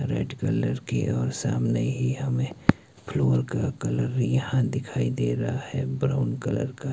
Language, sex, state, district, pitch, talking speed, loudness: Hindi, male, Himachal Pradesh, Shimla, 130 Hz, 165 wpm, -26 LUFS